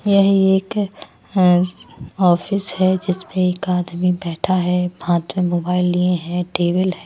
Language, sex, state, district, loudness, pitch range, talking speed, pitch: Hindi, female, Himachal Pradesh, Shimla, -18 LUFS, 180-190 Hz, 135 wpm, 180 Hz